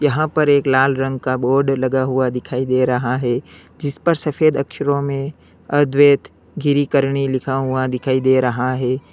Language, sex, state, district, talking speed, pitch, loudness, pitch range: Hindi, male, Uttar Pradesh, Lalitpur, 170 wpm, 135 Hz, -18 LUFS, 130-145 Hz